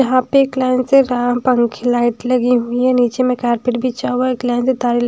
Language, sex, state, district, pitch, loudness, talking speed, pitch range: Hindi, female, Bihar, Patna, 245 Hz, -16 LUFS, 225 wpm, 245-255 Hz